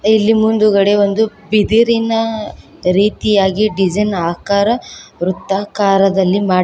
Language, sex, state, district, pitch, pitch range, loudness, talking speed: Kannada, female, Karnataka, Koppal, 205 Hz, 195-215 Hz, -14 LUFS, 80 wpm